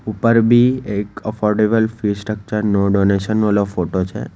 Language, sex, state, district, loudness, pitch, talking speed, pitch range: Gujarati, male, Gujarat, Valsad, -17 LUFS, 105 Hz, 150 wpm, 100-110 Hz